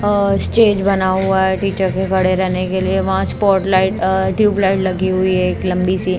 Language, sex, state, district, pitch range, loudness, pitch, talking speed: Hindi, female, Maharashtra, Mumbai Suburban, 185-195 Hz, -16 LUFS, 190 Hz, 185 wpm